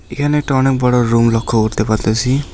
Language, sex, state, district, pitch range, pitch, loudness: Bengali, male, West Bengal, Alipurduar, 110-135 Hz, 120 Hz, -15 LUFS